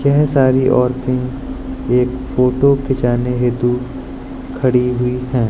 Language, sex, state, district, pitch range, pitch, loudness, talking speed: Hindi, male, Uttar Pradesh, Lucknow, 125-135 Hz, 125 Hz, -16 LUFS, 110 wpm